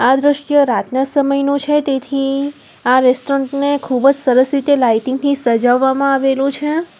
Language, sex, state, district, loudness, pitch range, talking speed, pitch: Gujarati, female, Gujarat, Valsad, -15 LUFS, 260-285 Hz, 145 wpm, 275 Hz